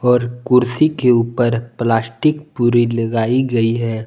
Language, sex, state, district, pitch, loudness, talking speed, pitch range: Hindi, male, Jharkhand, Palamu, 120 Hz, -16 LUFS, 135 wpm, 115-125 Hz